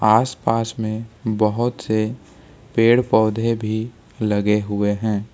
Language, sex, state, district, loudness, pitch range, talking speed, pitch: Hindi, male, Jharkhand, Ranchi, -20 LUFS, 105-115 Hz, 110 wpm, 110 Hz